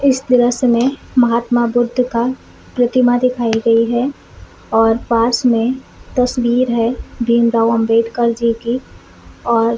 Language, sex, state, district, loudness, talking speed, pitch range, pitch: Hindi, female, Chhattisgarh, Balrampur, -15 LUFS, 125 wpm, 230-250 Hz, 240 Hz